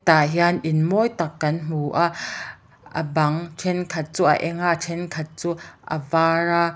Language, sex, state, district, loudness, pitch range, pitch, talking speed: Mizo, female, Mizoram, Aizawl, -22 LUFS, 155-170 Hz, 165 Hz, 185 wpm